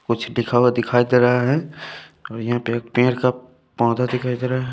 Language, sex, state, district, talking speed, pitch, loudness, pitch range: Hindi, male, Bihar, West Champaran, 230 wpm, 125 Hz, -20 LUFS, 120-125 Hz